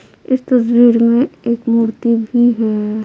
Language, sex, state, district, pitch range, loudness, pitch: Hindi, female, Bihar, Patna, 230-240 Hz, -14 LUFS, 235 Hz